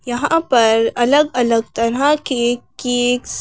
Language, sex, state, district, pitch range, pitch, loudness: Hindi, female, Madhya Pradesh, Bhopal, 235-270 Hz, 245 Hz, -16 LUFS